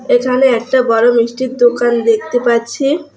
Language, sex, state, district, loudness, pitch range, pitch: Bengali, female, West Bengal, Alipurduar, -13 LUFS, 235-260 Hz, 245 Hz